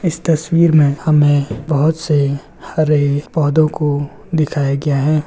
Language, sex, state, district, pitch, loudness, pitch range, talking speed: Hindi, male, Bihar, Darbhanga, 150 Hz, -15 LUFS, 145-155 Hz, 135 wpm